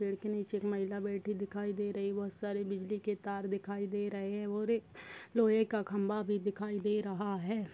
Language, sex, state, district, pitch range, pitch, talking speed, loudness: Hindi, female, Uttar Pradesh, Gorakhpur, 200-210 Hz, 205 Hz, 215 wpm, -36 LUFS